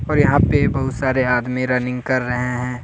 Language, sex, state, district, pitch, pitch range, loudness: Hindi, male, Jharkhand, Deoghar, 125 Hz, 125-130 Hz, -19 LUFS